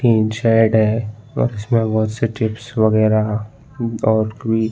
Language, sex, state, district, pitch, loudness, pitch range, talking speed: Hindi, male, Chhattisgarh, Balrampur, 110 Hz, -18 LUFS, 110-115 Hz, 155 wpm